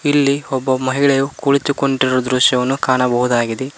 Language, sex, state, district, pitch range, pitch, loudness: Kannada, male, Karnataka, Koppal, 125-140 Hz, 130 Hz, -16 LUFS